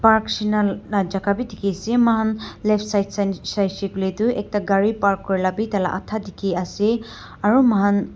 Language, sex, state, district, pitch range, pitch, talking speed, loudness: Nagamese, female, Nagaland, Dimapur, 195-220 Hz, 205 Hz, 200 wpm, -21 LUFS